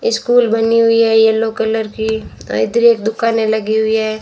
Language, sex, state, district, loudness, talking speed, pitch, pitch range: Hindi, female, Rajasthan, Bikaner, -14 LUFS, 185 wpm, 220 Hz, 220-230 Hz